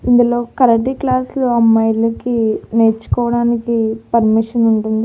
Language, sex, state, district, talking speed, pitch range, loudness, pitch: Telugu, female, Andhra Pradesh, Annamaya, 85 wpm, 225-240 Hz, -15 LUFS, 230 Hz